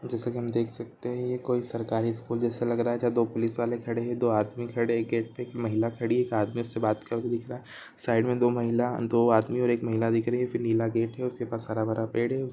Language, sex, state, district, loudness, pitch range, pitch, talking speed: Hindi, male, Chhattisgarh, Raigarh, -28 LUFS, 115-120 Hz, 115 Hz, 285 wpm